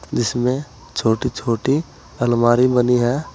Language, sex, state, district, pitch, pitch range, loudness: Hindi, male, Uttar Pradesh, Saharanpur, 125 Hz, 120-130 Hz, -19 LUFS